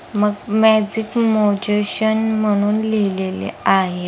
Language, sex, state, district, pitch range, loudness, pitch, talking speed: Marathi, female, Maharashtra, Pune, 200-220 Hz, -17 LUFS, 210 Hz, 90 wpm